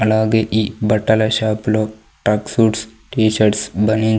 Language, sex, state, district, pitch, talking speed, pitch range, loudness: Telugu, male, Andhra Pradesh, Sri Satya Sai, 110 Hz, 145 wpm, 105-110 Hz, -17 LUFS